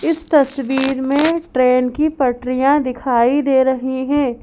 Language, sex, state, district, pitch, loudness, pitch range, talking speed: Hindi, female, Madhya Pradesh, Bhopal, 265 Hz, -16 LUFS, 255-290 Hz, 135 wpm